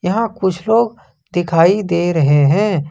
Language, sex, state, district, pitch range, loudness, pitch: Hindi, male, Jharkhand, Ranchi, 160-210 Hz, -15 LUFS, 175 Hz